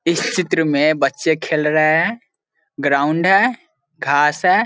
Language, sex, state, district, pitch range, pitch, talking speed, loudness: Hindi, male, Bihar, Sitamarhi, 150-185 Hz, 160 Hz, 140 wpm, -16 LUFS